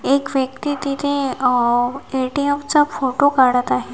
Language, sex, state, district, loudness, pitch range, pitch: Marathi, female, Maharashtra, Washim, -18 LUFS, 250-285 Hz, 270 Hz